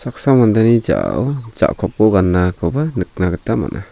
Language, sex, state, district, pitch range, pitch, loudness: Garo, male, Meghalaya, South Garo Hills, 90-125 Hz, 110 Hz, -16 LUFS